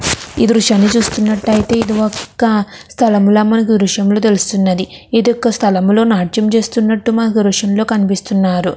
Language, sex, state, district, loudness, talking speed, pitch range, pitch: Telugu, female, Andhra Pradesh, Chittoor, -13 LUFS, 125 wpm, 200-225 Hz, 215 Hz